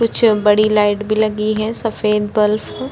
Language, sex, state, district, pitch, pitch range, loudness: Hindi, female, Chhattisgarh, Korba, 215 Hz, 210-220 Hz, -16 LUFS